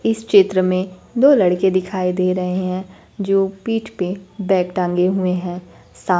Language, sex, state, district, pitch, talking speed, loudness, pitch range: Hindi, female, Bihar, Kaimur, 185 Hz, 165 wpm, -18 LUFS, 180-195 Hz